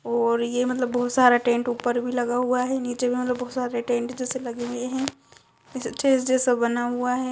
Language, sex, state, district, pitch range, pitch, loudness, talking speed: Hindi, female, Uttar Pradesh, Ghazipur, 240-255 Hz, 245 Hz, -24 LUFS, 215 wpm